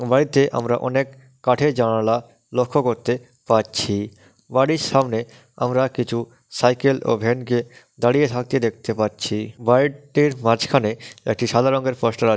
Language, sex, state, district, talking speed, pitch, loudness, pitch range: Bengali, male, West Bengal, Dakshin Dinajpur, 130 wpm, 120 Hz, -20 LUFS, 115-135 Hz